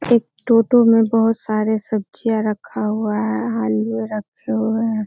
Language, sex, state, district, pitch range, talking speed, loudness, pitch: Hindi, female, Uttar Pradesh, Hamirpur, 185-225 Hz, 155 wpm, -19 LUFS, 215 Hz